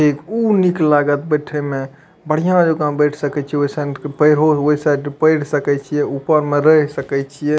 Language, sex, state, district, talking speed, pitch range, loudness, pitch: Maithili, male, Bihar, Madhepura, 165 wpm, 145-155 Hz, -16 LUFS, 150 Hz